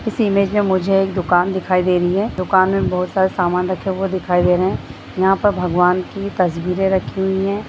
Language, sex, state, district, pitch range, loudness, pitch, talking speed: Hindi, female, Bihar, Bhagalpur, 180-195 Hz, -17 LUFS, 190 Hz, 225 wpm